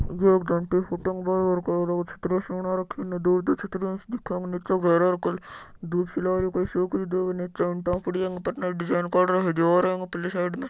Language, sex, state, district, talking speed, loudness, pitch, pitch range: Marwari, male, Rajasthan, Churu, 265 wpm, -25 LUFS, 180 Hz, 175-185 Hz